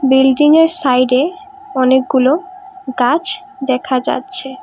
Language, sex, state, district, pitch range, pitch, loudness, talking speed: Bengali, female, Assam, Kamrup Metropolitan, 260-380 Hz, 270 Hz, -14 LUFS, 80 wpm